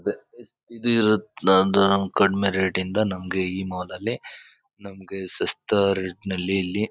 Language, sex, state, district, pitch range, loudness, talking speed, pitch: Kannada, male, Karnataka, Bijapur, 95-105 Hz, -23 LUFS, 150 wpm, 95 Hz